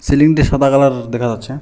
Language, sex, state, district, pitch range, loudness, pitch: Bengali, male, West Bengal, Alipurduar, 120-140 Hz, -14 LUFS, 135 Hz